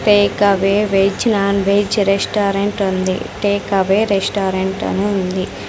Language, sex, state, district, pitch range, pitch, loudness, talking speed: Telugu, female, Andhra Pradesh, Sri Satya Sai, 195-205 Hz, 200 Hz, -16 LUFS, 125 wpm